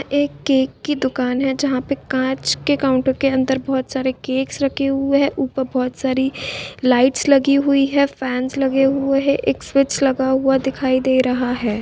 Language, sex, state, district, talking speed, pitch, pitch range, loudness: Hindi, female, Chhattisgarh, Rajnandgaon, 190 wpm, 265 Hz, 260-275 Hz, -18 LUFS